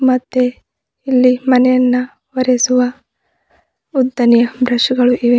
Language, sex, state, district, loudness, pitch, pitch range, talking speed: Kannada, female, Karnataka, Bidar, -14 LUFS, 250 Hz, 245-255 Hz, 90 wpm